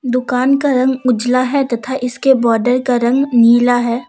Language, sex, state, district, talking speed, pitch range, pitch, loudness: Hindi, female, Jharkhand, Deoghar, 175 wpm, 240-260 Hz, 250 Hz, -14 LUFS